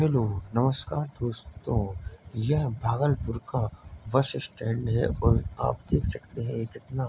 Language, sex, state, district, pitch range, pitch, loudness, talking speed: Hindi, male, Bihar, Bhagalpur, 110-130 Hz, 115 Hz, -29 LUFS, 135 wpm